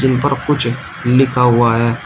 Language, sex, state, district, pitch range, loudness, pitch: Hindi, male, Uttar Pradesh, Shamli, 120-135 Hz, -14 LUFS, 125 Hz